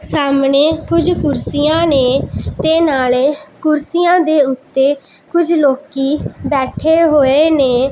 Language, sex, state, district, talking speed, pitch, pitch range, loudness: Punjabi, female, Punjab, Pathankot, 105 wpm, 290 Hz, 270-320 Hz, -13 LUFS